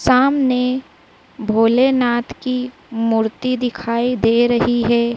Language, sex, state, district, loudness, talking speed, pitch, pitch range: Hindi, female, Madhya Pradesh, Dhar, -17 LUFS, 95 wpm, 240 Hz, 230-255 Hz